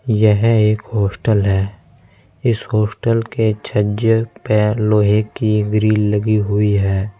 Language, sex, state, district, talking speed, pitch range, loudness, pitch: Hindi, male, Uttar Pradesh, Saharanpur, 125 wpm, 105-110 Hz, -16 LUFS, 105 Hz